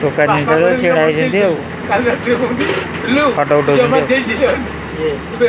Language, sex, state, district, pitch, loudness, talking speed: Odia, male, Odisha, Khordha, 155 Hz, -14 LUFS, 75 wpm